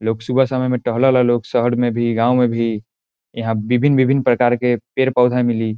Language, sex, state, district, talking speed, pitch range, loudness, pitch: Bhojpuri, male, Bihar, Saran, 240 wpm, 115-125 Hz, -17 LUFS, 120 Hz